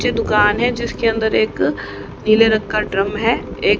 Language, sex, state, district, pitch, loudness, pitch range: Hindi, female, Haryana, Jhajjar, 215 Hz, -17 LUFS, 195-225 Hz